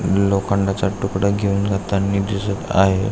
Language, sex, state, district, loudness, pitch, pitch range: Marathi, male, Maharashtra, Aurangabad, -19 LUFS, 100 Hz, 95-100 Hz